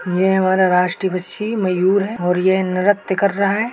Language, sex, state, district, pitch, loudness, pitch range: Hindi, male, Uttar Pradesh, Etah, 190 Hz, -17 LUFS, 180-200 Hz